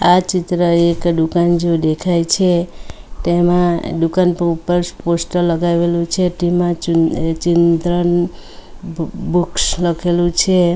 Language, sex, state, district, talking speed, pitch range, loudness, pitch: Gujarati, female, Gujarat, Valsad, 115 wpm, 170-175 Hz, -16 LUFS, 175 Hz